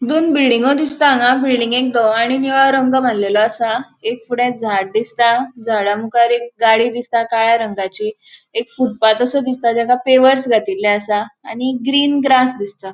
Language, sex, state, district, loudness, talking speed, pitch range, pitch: Konkani, female, Goa, North and South Goa, -15 LUFS, 160 wpm, 220-260 Hz, 235 Hz